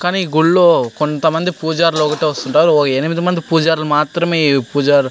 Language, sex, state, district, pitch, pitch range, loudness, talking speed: Telugu, male, Andhra Pradesh, Anantapur, 160 Hz, 150-170 Hz, -14 LUFS, 155 wpm